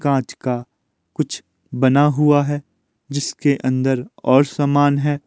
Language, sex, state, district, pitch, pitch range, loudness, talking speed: Hindi, male, Himachal Pradesh, Shimla, 140 Hz, 130-145 Hz, -18 LUFS, 125 wpm